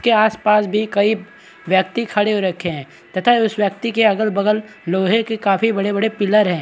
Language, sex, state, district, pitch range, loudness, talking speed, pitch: Hindi, male, Bihar, Supaul, 195-220 Hz, -17 LUFS, 180 wpm, 210 Hz